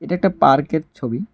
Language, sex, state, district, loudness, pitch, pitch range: Bengali, male, Tripura, West Tripura, -18 LUFS, 160 Hz, 135-180 Hz